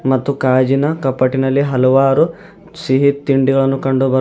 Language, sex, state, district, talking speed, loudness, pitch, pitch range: Kannada, male, Karnataka, Bidar, 100 wpm, -14 LUFS, 135 Hz, 130-140 Hz